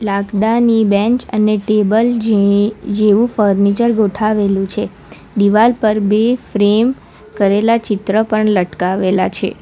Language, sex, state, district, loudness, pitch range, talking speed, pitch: Gujarati, female, Gujarat, Valsad, -14 LUFS, 200-225 Hz, 110 wpm, 215 Hz